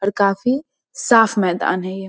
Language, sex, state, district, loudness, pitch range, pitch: Hindi, female, Bihar, Muzaffarpur, -18 LUFS, 190-245 Hz, 200 Hz